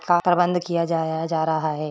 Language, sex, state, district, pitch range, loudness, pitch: Hindi, female, Rajasthan, Churu, 160-175 Hz, -22 LUFS, 165 Hz